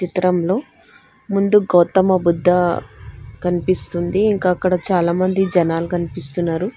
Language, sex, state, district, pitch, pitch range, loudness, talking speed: Telugu, female, Telangana, Hyderabad, 180 Hz, 175-190 Hz, -18 LUFS, 95 wpm